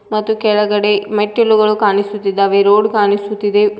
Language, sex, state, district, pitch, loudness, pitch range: Kannada, female, Karnataka, Koppal, 210 Hz, -13 LUFS, 205-215 Hz